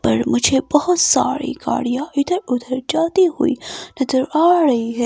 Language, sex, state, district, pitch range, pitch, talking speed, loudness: Hindi, female, Himachal Pradesh, Shimla, 250-330 Hz, 280 Hz, 155 wpm, -17 LUFS